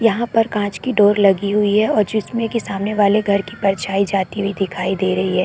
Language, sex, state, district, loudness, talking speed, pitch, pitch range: Hindi, female, Chhattisgarh, Korba, -18 LUFS, 230 wpm, 205 Hz, 195-215 Hz